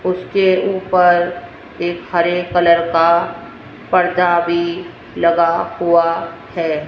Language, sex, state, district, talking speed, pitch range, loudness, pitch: Hindi, female, Rajasthan, Jaipur, 95 wpm, 170-180 Hz, -15 LUFS, 175 Hz